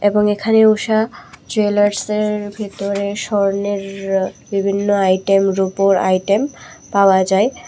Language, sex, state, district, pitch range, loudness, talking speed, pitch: Bengali, female, Tripura, West Tripura, 195-210 Hz, -17 LUFS, 95 wpm, 200 Hz